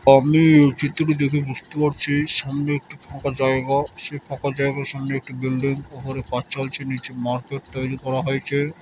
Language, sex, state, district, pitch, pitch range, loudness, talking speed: Bengali, male, West Bengal, Dakshin Dinajpur, 140 Hz, 135-145 Hz, -22 LUFS, 170 wpm